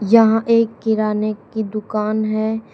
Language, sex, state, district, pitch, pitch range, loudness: Hindi, female, Uttar Pradesh, Shamli, 220 Hz, 215-225 Hz, -18 LUFS